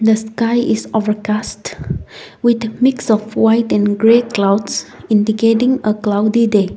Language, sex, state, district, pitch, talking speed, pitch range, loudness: English, female, Nagaland, Kohima, 220 Hz, 135 wpm, 210-230 Hz, -15 LUFS